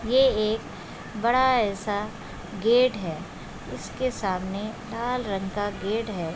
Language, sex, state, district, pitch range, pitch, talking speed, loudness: Hindi, female, Bihar, Begusarai, 195-240 Hz, 215 Hz, 125 wpm, -26 LUFS